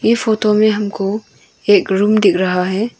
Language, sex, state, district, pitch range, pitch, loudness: Hindi, female, Arunachal Pradesh, Longding, 195-215 Hz, 205 Hz, -15 LUFS